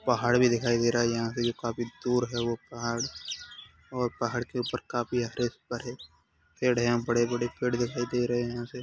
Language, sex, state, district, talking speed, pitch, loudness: Hindi, male, Uttar Pradesh, Hamirpur, 225 wpm, 120 Hz, -29 LUFS